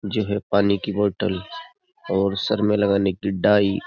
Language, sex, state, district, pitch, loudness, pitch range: Hindi, male, Uttar Pradesh, Jyotiba Phule Nagar, 100 Hz, -21 LUFS, 100-105 Hz